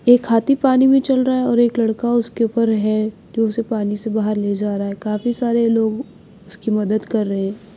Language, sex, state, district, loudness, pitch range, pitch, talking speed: Hindi, female, Bihar, Patna, -18 LUFS, 210-240 Hz, 225 Hz, 230 wpm